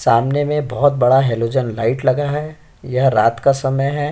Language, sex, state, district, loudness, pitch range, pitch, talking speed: Hindi, male, Uttar Pradesh, Jyotiba Phule Nagar, -17 LUFS, 125-145 Hz, 135 Hz, 190 wpm